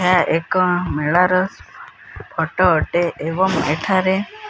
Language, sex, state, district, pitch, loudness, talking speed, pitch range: Odia, male, Odisha, Khordha, 180 Hz, -18 LUFS, 95 wpm, 165-190 Hz